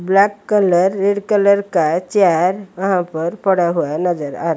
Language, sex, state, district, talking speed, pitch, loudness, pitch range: Hindi, female, Odisha, Malkangiri, 155 wpm, 190 Hz, -16 LUFS, 175-200 Hz